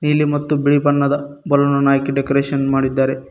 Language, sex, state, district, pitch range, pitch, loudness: Kannada, male, Karnataka, Koppal, 135-145 Hz, 140 Hz, -17 LUFS